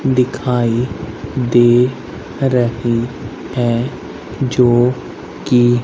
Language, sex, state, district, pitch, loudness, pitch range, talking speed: Hindi, male, Haryana, Rohtak, 125 Hz, -16 LUFS, 120-130 Hz, 60 wpm